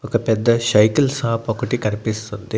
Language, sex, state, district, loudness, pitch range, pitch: Telugu, male, Andhra Pradesh, Annamaya, -19 LUFS, 110-120 Hz, 115 Hz